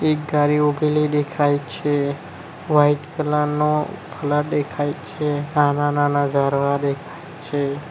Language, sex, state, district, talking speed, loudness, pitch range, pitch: Gujarati, male, Gujarat, Valsad, 120 wpm, -20 LUFS, 145-150 Hz, 145 Hz